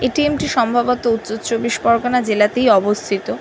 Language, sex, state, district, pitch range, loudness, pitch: Bengali, female, West Bengal, North 24 Parganas, 220-250 Hz, -17 LUFS, 235 Hz